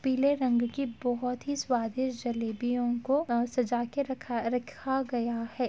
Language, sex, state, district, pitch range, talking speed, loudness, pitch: Hindi, female, Uttar Pradesh, Etah, 240-265 Hz, 160 wpm, -30 LUFS, 245 Hz